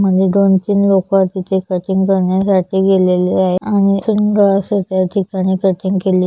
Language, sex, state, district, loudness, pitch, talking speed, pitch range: Marathi, female, Maharashtra, Chandrapur, -14 LUFS, 190 Hz, 145 wpm, 185-195 Hz